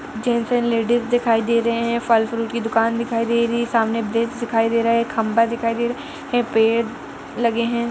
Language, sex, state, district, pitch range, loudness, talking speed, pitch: Hindi, female, Uttar Pradesh, Etah, 230-235 Hz, -20 LUFS, 220 wpm, 235 Hz